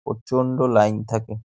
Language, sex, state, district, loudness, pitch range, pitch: Bengali, male, West Bengal, Dakshin Dinajpur, -21 LUFS, 110-130 Hz, 115 Hz